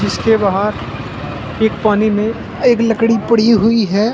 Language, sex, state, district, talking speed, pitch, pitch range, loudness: Hindi, male, Uttar Pradesh, Shamli, 145 wpm, 215 Hz, 195-230 Hz, -14 LUFS